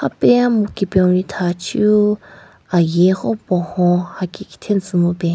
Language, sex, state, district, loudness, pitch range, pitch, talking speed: Rengma, female, Nagaland, Kohima, -17 LUFS, 175-210 Hz, 185 Hz, 100 wpm